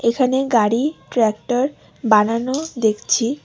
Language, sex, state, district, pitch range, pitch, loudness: Bengali, female, West Bengal, Alipurduar, 225-265 Hz, 240 Hz, -19 LUFS